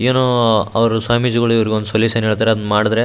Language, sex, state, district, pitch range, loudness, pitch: Kannada, male, Karnataka, Raichur, 110-120 Hz, -15 LUFS, 115 Hz